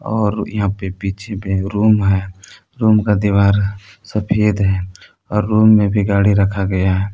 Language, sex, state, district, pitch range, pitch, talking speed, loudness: Hindi, male, Jharkhand, Palamu, 95-105 Hz, 100 Hz, 170 wpm, -16 LUFS